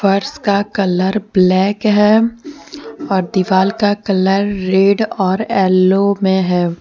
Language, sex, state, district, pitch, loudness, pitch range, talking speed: Hindi, female, Jharkhand, Deoghar, 195 Hz, -14 LUFS, 190-205 Hz, 125 wpm